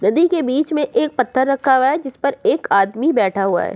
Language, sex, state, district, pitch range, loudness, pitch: Hindi, female, Uttar Pradesh, Jyotiba Phule Nagar, 225-295 Hz, -17 LUFS, 265 Hz